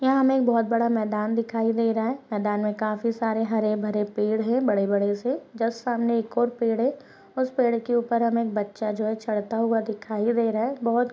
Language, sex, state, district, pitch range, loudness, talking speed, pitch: Hindi, female, Chhattisgarh, Rajnandgaon, 215-235 Hz, -25 LUFS, 220 wpm, 230 Hz